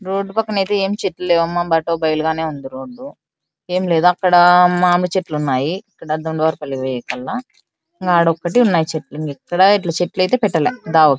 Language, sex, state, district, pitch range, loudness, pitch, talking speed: Telugu, female, Andhra Pradesh, Anantapur, 160-190 Hz, -17 LUFS, 175 Hz, 145 wpm